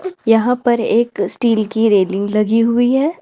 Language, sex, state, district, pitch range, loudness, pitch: Hindi, female, Jharkhand, Ranchi, 220-245 Hz, -15 LUFS, 230 Hz